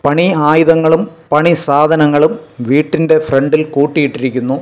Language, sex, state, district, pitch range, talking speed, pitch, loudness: Malayalam, male, Kerala, Kasaragod, 145-160 Hz, 90 wpm, 155 Hz, -12 LUFS